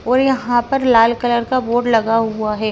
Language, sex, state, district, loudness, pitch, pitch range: Hindi, female, Himachal Pradesh, Shimla, -16 LUFS, 240 Hz, 225-250 Hz